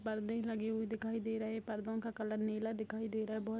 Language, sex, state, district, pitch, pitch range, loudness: Hindi, female, Bihar, Darbhanga, 220 Hz, 220-225 Hz, -39 LUFS